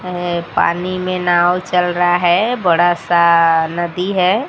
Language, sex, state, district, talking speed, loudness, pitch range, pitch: Hindi, female, Odisha, Sambalpur, 145 wpm, -15 LUFS, 170-180 Hz, 175 Hz